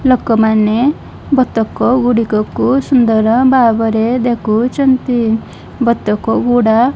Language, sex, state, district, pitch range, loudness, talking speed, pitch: Odia, female, Odisha, Malkangiri, 220-255 Hz, -13 LUFS, 60 wpm, 235 Hz